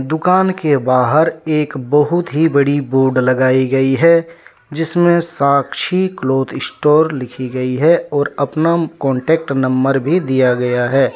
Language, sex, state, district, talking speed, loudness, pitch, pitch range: Hindi, male, Jharkhand, Deoghar, 140 wpm, -15 LUFS, 140 Hz, 130-165 Hz